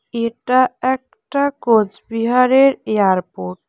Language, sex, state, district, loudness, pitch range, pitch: Bengali, female, West Bengal, Cooch Behar, -17 LUFS, 215-260 Hz, 240 Hz